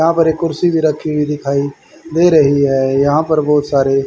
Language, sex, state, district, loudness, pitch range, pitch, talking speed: Hindi, male, Haryana, Rohtak, -14 LUFS, 140-160 Hz, 150 Hz, 220 wpm